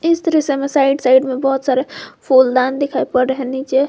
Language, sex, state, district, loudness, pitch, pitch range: Hindi, female, Jharkhand, Garhwa, -15 LUFS, 270 Hz, 260-280 Hz